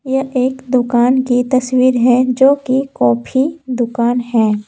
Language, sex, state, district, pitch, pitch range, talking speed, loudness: Hindi, female, Jharkhand, Deoghar, 255 Hz, 240-260 Hz, 140 wpm, -14 LUFS